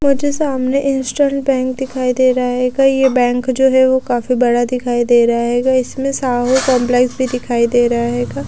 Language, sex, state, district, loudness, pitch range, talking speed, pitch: Hindi, female, Odisha, Nuapada, -15 LUFS, 245-265 Hz, 205 wpm, 255 Hz